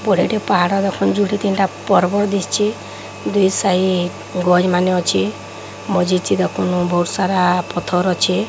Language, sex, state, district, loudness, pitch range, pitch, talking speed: Odia, female, Odisha, Sambalpur, -17 LUFS, 180-195 Hz, 185 Hz, 125 wpm